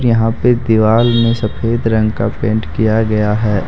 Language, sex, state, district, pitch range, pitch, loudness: Hindi, male, Jharkhand, Deoghar, 110-115 Hz, 110 Hz, -14 LUFS